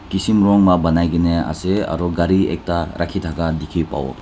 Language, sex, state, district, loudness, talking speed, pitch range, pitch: Nagamese, male, Nagaland, Dimapur, -18 LUFS, 200 wpm, 80-95 Hz, 85 Hz